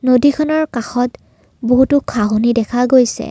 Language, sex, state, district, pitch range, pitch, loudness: Assamese, female, Assam, Kamrup Metropolitan, 240-280 Hz, 250 Hz, -15 LUFS